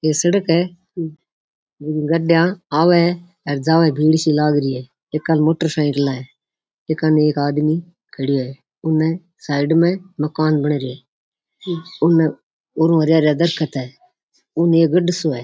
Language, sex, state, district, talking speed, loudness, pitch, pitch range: Rajasthani, female, Rajasthan, Nagaur, 145 wpm, -18 LUFS, 160 Hz, 150-170 Hz